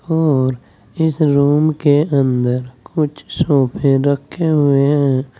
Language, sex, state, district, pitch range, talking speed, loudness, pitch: Hindi, male, Uttar Pradesh, Saharanpur, 135-155 Hz, 110 wpm, -16 LUFS, 145 Hz